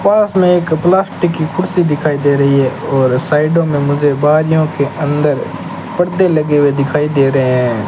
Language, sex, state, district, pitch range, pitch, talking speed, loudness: Hindi, male, Rajasthan, Bikaner, 140-170 Hz, 150 Hz, 185 wpm, -13 LUFS